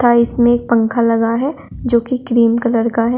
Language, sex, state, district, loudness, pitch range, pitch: Hindi, female, Uttar Pradesh, Shamli, -15 LUFS, 230-240 Hz, 235 Hz